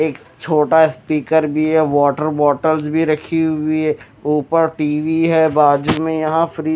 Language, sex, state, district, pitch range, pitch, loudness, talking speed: Hindi, male, Chandigarh, Chandigarh, 150-160 Hz, 155 Hz, -16 LUFS, 170 wpm